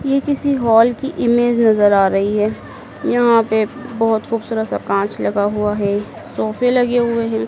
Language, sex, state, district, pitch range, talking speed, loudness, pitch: Hindi, female, Madhya Pradesh, Dhar, 210-245 Hz, 175 wpm, -16 LUFS, 225 Hz